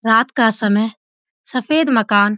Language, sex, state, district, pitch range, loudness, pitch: Hindi, female, Uttarakhand, Uttarkashi, 210-250 Hz, -16 LUFS, 225 Hz